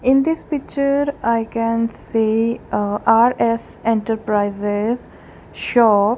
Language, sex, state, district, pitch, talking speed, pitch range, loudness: English, female, Punjab, Kapurthala, 230 Hz, 95 wpm, 220-245 Hz, -19 LUFS